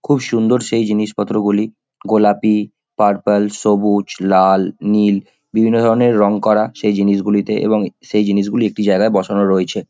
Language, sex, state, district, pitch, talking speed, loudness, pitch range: Bengali, male, West Bengal, Kolkata, 105 Hz, 135 wpm, -15 LUFS, 100-110 Hz